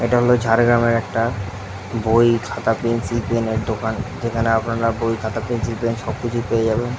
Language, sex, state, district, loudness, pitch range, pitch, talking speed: Bengali, male, West Bengal, Jhargram, -20 LUFS, 110-115 Hz, 115 Hz, 165 wpm